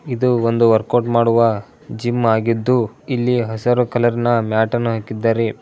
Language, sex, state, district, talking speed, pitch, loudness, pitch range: Kannada, male, Karnataka, Dharwad, 130 wpm, 115 Hz, -17 LUFS, 115-120 Hz